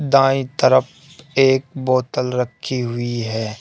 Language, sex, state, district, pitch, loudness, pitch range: Hindi, male, Uttar Pradesh, Shamli, 130 Hz, -19 LUFS, 120-135 Hz